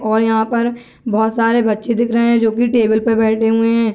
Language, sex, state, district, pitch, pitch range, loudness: Hindi, female, Bihar, Gopalganj, 225 Hz, 220-235 Hz, -15 LUFS